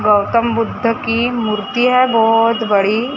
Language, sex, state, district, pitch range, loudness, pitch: Hindi, female, Maharashtra, Gondia, 215-240 Hz, -15 LUFS, 230 Hz